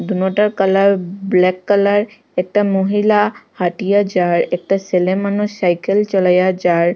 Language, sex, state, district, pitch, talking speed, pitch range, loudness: Bengali, female, Assam, Hailakandi, 195 Hz, 120 wpm, 180-205 Hz, -16 LUFS